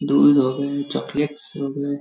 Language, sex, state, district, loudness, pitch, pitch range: Hindi, male, Bihar, Darbhanga, -21 LUFS, 140 Hz, 140-145 Hz